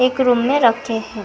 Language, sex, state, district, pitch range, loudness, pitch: Hindi, female, Karnataka, Bangalore, 225-255 Hz, -17 LUFS, 235 Hz